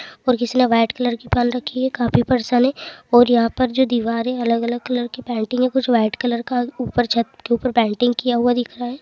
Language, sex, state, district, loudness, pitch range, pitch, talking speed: Hindi, female, Bihar, Saharsa, -19 LUFS, 235-255 Hz, 245 Hz, 240 wpm